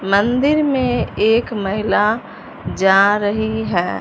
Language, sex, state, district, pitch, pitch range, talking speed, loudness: Hindi, male, Punjab, Fazilka, 215 Hz, 200-230 Hz, 105 wpm, -17 LUFS